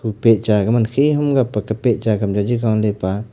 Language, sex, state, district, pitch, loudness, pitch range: Wancho, male, Arunachal Pradesh, Longding, 110 Hz, -17 LUFS, 105-120 Hz